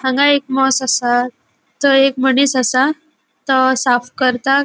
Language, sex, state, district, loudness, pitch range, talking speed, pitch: Konkani, female, Goa, North and South Goa, -14 LUFS, 255-275 Hz, 140 wpm, 265 Hz